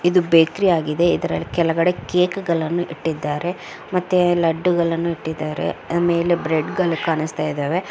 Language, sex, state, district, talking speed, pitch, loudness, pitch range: Kannada, female, Karnataka, Mysore, 115 wpm, 170 Hz, -20 LUFS, 160-175 Hz